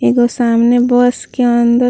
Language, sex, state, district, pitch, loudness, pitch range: Bhojpuri, female, Uttar Pradesh, Ghazipur, 240 Hz, -12 LUFS, 235-245 Hz